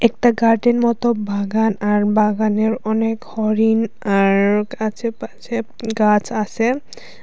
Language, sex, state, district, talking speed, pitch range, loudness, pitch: Bengali, female, Tripura, West Tripura, 110 wpm, 210-230 Hz, -18 LUFS, 220 Hz